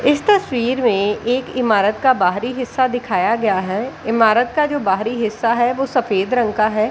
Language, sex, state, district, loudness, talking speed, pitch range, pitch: Hindi, female, Bihar, Jahanabad, -17 LUFS, 190 wpm, 215-255 Hz, 235 Hz